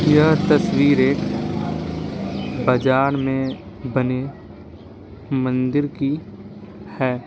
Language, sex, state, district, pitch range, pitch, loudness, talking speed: Hindi, male, Bihar, Patna, 125-140 Hz, 130 Hz, -20 LUFS, 75 wpm